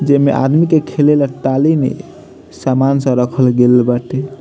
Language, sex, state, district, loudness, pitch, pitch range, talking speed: Bhojpuri, male, Bihar, Muzaffarpur, -13 LUFS, 135 Hz, 130-145 Hz, 165 wpm